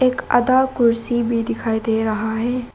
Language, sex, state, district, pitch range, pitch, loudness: Hindi, female, Arunachal Pradesh, Lower Dibang Valley, 225-250 Hz, 235 Hz, -19 LUFS